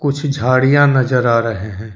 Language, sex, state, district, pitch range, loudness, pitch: Hindi, male, Jharkhand, Deoghar, 115-140 Hz, -14 LUFS, 130 Hz